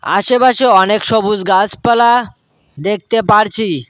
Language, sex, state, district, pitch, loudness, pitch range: Bengali, male, West Bengal, Cooch Behar, 215 Hz, -11 LUFS, 200-235 Hz